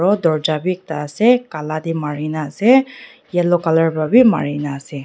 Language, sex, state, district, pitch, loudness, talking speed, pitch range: Nagamese, female, Nagaland, Dimapur, 160 Hz, -17 LUFS, 180 wpm, 155-200 Hz